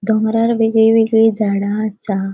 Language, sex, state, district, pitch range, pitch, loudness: Konkani, female, Goa, North and South Goa, 205-225 Hz, 220 Hz, -15 LUFS